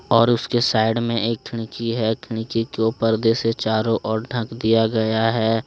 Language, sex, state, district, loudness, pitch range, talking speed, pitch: Hindi, male, Jharkhand, Deoghar, -21 LUFS, 110-115 Hz, 180 wpm, 115 Hz